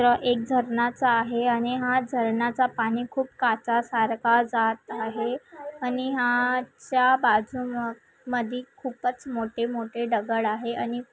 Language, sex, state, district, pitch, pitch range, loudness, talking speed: Marathi, female, Maharashtra, Chandrapur, 240 Hz, 230-250 Hz, -25 LUFS, 125 wpm